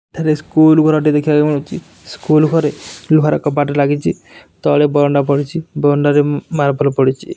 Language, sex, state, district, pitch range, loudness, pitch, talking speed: Odia, male, Odisha, Nuapada, 145-155 Hz, -14 LUFS, 145 Hz, 165 wpm